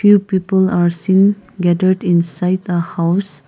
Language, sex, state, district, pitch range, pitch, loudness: English, female, Nagaland, Kohima, 175-195 Hz, 185 Hz, -15 LUFS